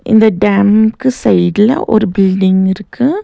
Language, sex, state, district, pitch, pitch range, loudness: Tamil, female, Tamil Nadu, Nilgiris, 210 Hz, 190-235 Hz, -11 LUFS